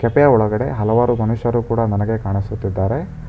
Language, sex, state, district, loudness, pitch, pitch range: Kannada, male, Karnataka, Bangalore, -18 LUFS, 115 Hz, 105-120 Hz